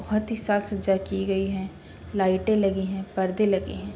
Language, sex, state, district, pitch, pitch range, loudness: Hindi, female, Uttar Pradesh, Budaun, 195 Hz, 190-205 Hz, -25 LUFS